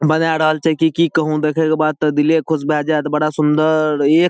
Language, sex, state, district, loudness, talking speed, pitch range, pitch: Maithili, male, Bihar, Saharsa, -16 LUFS, 235 wpm, 150-160 Hz, 155 Hz